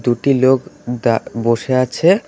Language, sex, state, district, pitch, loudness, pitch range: Bengali, male, West Bengal, Alipurduar, 125 Hz, -16 LUFS, 115-135 Hz